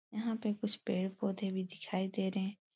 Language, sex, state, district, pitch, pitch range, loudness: Hindi, female, Uttar Pradesh, Etah, 195 Hz, 190-215 Hz, -37 LUFS